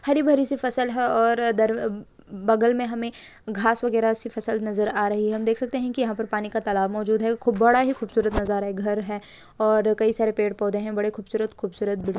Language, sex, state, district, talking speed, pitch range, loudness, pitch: Hindi, female, Bihar, Sitamarhi, 210 wpm, 210-235 Hz, -23 LUFS, 220 Hz